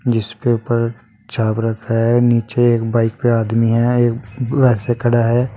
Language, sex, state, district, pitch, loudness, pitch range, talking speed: Hindi, male, Uttar Pradesh, Saharanpur, 115 Hz, -16 LUFS, 115-120 Hz, 160 wpm